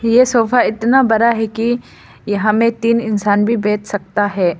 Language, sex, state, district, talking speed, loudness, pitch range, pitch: Hindi, female, Arunachal Pradesh, Lower Dibang Valley, 180 wpm, -15 LUFS, 205-235 Hz, 225 Hz